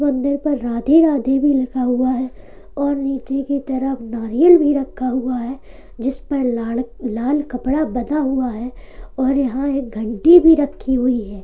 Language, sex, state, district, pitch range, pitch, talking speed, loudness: Hindi, male, Uttar Pradesh, Lalitpur, 250-280 Hz, 265 Hz, 175 wpm, -18 LUFS